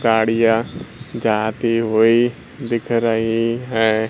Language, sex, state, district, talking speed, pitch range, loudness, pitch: Hindi, male, Bihar, Kaimur, 90 wpm, 110-120 Hz, -18 LUFS, 115 Hz